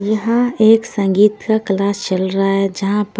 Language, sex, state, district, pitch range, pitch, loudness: Hindi, female, Punjab, Kapurthala, 195-220 Hz, 205 Hz, -15 LUFS